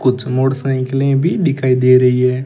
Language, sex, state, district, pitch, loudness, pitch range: Hindi, male, Rajasthan, Bikaner, 130 Hz, -14 LUFS, 125-135 Hz